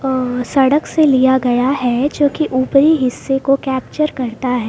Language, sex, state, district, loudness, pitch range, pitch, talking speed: Hindi, female, Bihar, Patna, -15 LUFS, 250-280 Hz, 265 Hz, 180 wpm